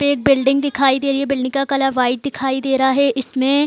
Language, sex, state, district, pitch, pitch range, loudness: Hindi, female, Bihar, Gopalganj, 275 Hz, 265-275 Hz, -17 LUFS